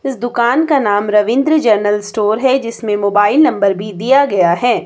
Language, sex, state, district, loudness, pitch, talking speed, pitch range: Hindi, female, Himachal Pradesh, Shimla, -13 LUFS, 220 Hz, 185 wpm, 205-265 Hz